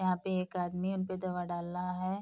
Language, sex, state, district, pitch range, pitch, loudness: Hindi, female, Bihar, Bhagalpur, 180-185 Hz, 185 Hz, -35 LUFS